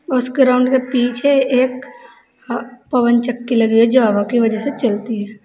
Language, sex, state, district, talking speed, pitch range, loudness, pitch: Hindi, female, Uttar Pradesh, Saharanpur, 175 wpm, 230-255 Hz, -16 LUFS, 245 Hz